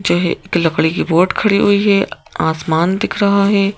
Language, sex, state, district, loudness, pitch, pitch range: Hindi, female, Madhya Pradesh, Bhopal, -15 LUFS, 190 Hz, 165-200 Hz